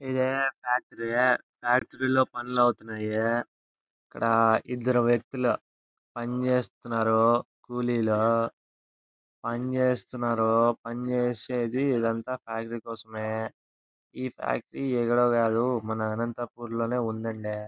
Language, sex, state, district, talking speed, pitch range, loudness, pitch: Telugu, male, Andhra Pradesh, Anantapur, 90 wpm, 115-125 Hz, -27 LUFS, 120 Hz